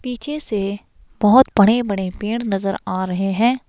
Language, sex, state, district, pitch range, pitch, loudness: Hindi, female, Himachal Pradesh, Shimla, 195-240 Hz, 210 Hz, -19 LUFS